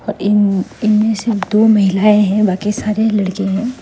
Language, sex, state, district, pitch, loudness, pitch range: Hindi, female, Meghalaya, West Garo Hills, 210 Hz, -14 LUFS, 200-215 Hz